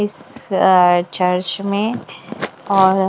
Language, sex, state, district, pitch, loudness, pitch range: Hindi, female, Bihar, West Champaran, 190 Hz, -17 LUFS, 180-205 Hz